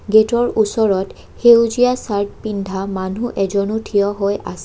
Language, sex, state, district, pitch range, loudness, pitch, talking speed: Assamese, female, Assam, Kamrup Metropolitan, 200-230 Hz, -17 LUFS, 205 Hz, 130 wpm